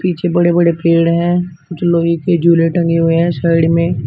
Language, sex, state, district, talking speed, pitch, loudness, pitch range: Hindi, male, Uttar Pradesh, Shamli, 205 wpm, 170 Hz, -13 LUFS, 165-175 Hz